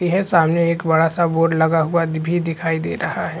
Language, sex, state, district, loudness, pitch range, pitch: Hindi, female, Chhattisgarh, Rajnandgaon, -18 LUFS, 160-170 Hz, 165 Hz